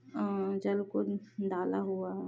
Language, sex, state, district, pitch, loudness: Hindi, female, Bihar, Jahanabad, 195 Hz, -34 LUFS